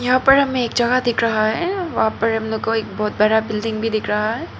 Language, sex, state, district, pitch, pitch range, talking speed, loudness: Hindi, female, Arunachal Pradesh, Papum Pare, 225 Hz, 215-250 Hz, 275 wpm, -19 LUFS